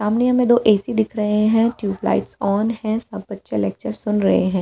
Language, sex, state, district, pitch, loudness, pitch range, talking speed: Hindi, female, Delhi, New Delhi, 210 Hz, -19 LUFS, 200-225 Hz, 220 wpm